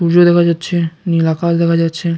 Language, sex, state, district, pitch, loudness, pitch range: Bengali, male, West Bengal, Jalpaiguri, 170 Hz, -14 LUFS, 165-175 Hz